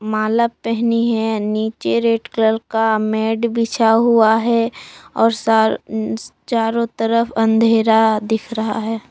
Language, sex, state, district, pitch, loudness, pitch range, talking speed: Hindi, female, Jharkhand, Palamu, 225 Hz, -17 LUFS, 220-230 Hz, 125 wpm